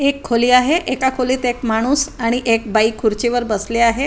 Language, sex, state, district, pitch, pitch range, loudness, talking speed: Marathi, female, Maharashtra, Aurangabad, 245 Hz, 230-260 Hz, -17 LUFS, 205 wpm